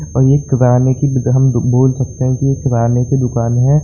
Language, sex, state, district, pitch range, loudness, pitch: Hindi, male, Bihar, Saran, 125-135 Hz, -13 LUFS, 130 Hz